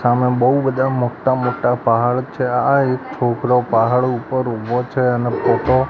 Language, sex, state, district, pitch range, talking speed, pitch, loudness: Gujarati, male, Gujarat, Gandhinagar, 120-130 Hz, 175 wpm, 125 Hz, -17 LUFS